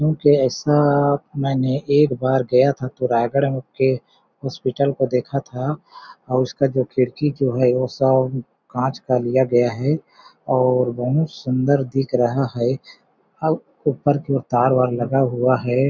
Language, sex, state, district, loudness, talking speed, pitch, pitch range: Hindi, male, Chhattisgarh, Balrampur, -20 LUFS, 155 wpm, 130 Hz, 125-140 Hz